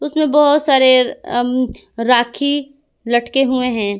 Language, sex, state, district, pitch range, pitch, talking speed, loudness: Hindi, female, Jharkhand, Garhwa, 245-285 Hz, 255 Hz, 105 wpm, -15 LUFS